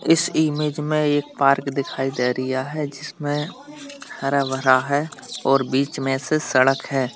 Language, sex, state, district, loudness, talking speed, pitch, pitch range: Hindi, male, Bihar, Bhagalpur, -21 LUFS, 150 wpm, 140 Hz, 135-150 Hz